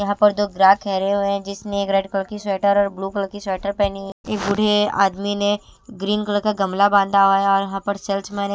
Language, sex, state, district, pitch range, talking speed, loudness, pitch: Hindi, female, Himachal Pradesh, Shimla, 195-205 Hz, 245 wpm, -20 LUFS, 200 Hz